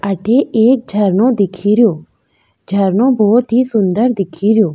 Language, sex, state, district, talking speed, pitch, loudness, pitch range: Rajasthani, female, Rajasthan, Nagaur, 115 wpm, 215 Hz, -13 LUFS, 195-235 Hz